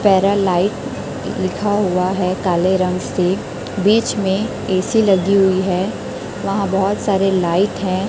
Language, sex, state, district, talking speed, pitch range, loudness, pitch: Hindi, female, Chhattisgarh, Raipur, 135 wpm, 185-200 Hz, -17 LUFS, 190 Hz